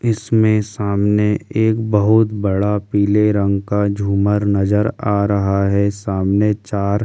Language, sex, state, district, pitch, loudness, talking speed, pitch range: Hindi, male, Delhi, New Delhi, 105 Hz, -17 LUFS, 155 wpm, 100-105 Hz